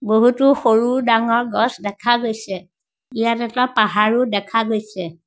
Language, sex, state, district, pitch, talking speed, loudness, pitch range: Assamese, female, Assam, Sonitpur, 225 Hz, 125 wpm, -18 LUFS, 210-240 Hz